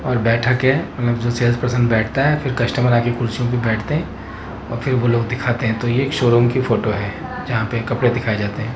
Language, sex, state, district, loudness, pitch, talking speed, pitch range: Hindi, male, Rajasthan, Jaipur, -18 LUFS, 120 Hz, 240 wpm, 115-125 Hz